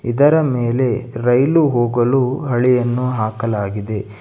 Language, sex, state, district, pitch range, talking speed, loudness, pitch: Kannada, male, Karnataka, Bangalore, 115-130 Hz, 85 wpm, -17 LUFS, 120 Hz